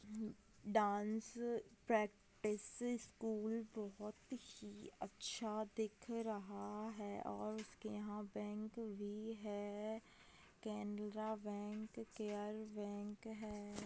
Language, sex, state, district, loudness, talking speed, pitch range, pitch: Hindi, female, Maharashtra, Aurangabad, -46 LUFS, 85 wpm, 210-220 Hz, 215 Hz